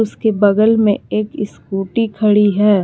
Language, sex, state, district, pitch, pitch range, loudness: Hindi, female, Jharkhand, Palamu, 210 Hz, 205-220 Hz, -15 LUFS